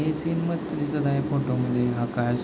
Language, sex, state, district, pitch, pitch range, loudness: Marathi, male, Maharashtra, Chandrapur, 140 Hz, 125-155 Hz, -26 LUFS